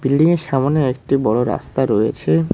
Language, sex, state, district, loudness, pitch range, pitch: Bengali, male, West Bengal, Cooch Behar, -17 LUFS, 125-150 Hz, 135 Hz